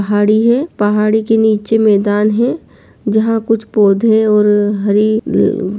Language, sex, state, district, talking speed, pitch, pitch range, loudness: Hindi, female, Bihar, Begusarai, 145 wpm, 215 Hz, 205-225 Hz, -13 LUFS